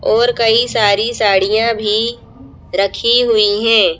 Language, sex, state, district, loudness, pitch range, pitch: Hindi, female, Madhya Pradesh, Bhopal, -13 LUFS, 200-245 Hz, 225 Hz